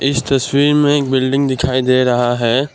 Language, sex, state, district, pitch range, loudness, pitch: Hindi, male, Assam, Kamrup Metropolitan, 130-140 Hz, -14 LUFS, 130 Hz